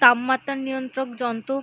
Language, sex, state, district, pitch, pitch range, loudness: Bengali, female, West Bengal, Malda, 260 Hz, 245-265 Hz, -24 LUFS